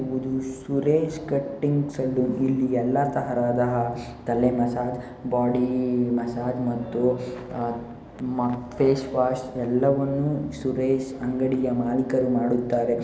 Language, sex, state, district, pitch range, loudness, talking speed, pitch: Kannada, male, Karnataka, Shimoga, 120-130 Hz, -25 LUFS, 90 wpm, 125 Hz